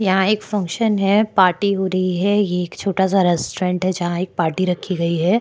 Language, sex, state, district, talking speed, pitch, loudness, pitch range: Hindi, female, Uttar Pradesh, Hamirpur, 220 wpm, 185 Hz, -19 LUFS, 180-200 Hz